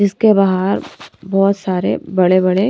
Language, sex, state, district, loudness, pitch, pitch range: Hindi, female, Punjab, Kapurthala, -15 LUFS, 190 Hz, 185-200 Hz